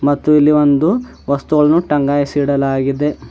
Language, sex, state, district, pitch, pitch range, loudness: Kannada, male, Karnataka, Bidar, 145 Hz, 140-150 Hz, -14 LUFS